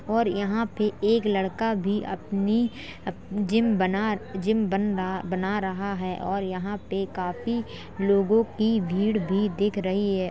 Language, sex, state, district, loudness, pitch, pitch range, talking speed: Hindi, female, Uttar Pradesh, Jalaun, -26 LUFS, 200 Hz, 190-215 Hz, 150 wpm